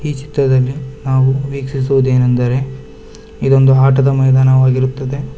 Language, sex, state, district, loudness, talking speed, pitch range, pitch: Kannada, male, Karnataka, Bangalore, -13 LUFS, 80 wpm, 130-135 Hz, 135 Hz